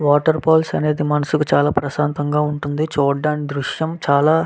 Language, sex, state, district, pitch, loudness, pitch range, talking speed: Telugu, male, Andhra Pradesh, Visakhapatnam, 150 Hz, -18 LUFS, 145-155 Hz, 135 wpm